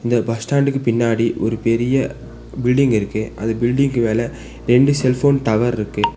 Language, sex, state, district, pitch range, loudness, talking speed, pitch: Tamil, female, Tamil Nadu, Nilgiris, 115-130 Hz, -18 LUFS, 175 wpm, 120 Hz